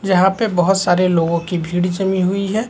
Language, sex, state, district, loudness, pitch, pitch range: Hindi, male, Bihar, Supaul, -17 LUFS, 185 Hz, 175-195 Hz